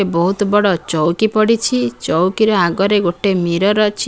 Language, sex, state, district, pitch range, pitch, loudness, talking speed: Odia, female, Odisha, Khordha, 175-210 Hz, 195 Hz, -15 LUFS, 130 wpm